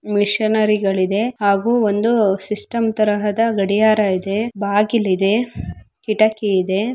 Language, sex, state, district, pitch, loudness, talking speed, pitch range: Kannada, female, Karnataka, Dharwad, 210 Hz, -17 LUFS, 105 wpm, 200-220 Hz